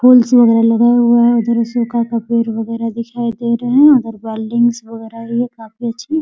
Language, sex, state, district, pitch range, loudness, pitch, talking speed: Hindi, male, Bihar, Muzaffarpur, 230-240 Hz, -14 LUFS, 235 Hz, 205 wpm